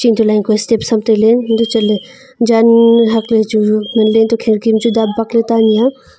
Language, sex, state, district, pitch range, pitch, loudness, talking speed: Wancho, female, Arunachal Pradesh, Longding, 220-230 Hz, 225 Hz, -12 LUFS, 215 wpm